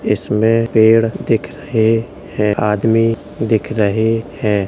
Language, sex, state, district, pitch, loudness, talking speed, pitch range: Hindi, male, Uttar Pradesh, Hamirpur, 110 Hz, -15 LUFS, 130 wpm, 105-115 Hz